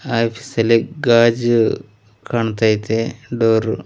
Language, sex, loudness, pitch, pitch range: Kannada, male, -17 LUFS, 115 Hz, 110-120 Hz